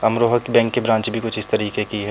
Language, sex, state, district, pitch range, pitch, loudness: Hindi, male, Uttar Pradesh, Jyotiba Phule Nagar, 110-115 Hz, 110 Hz, -19 LUFS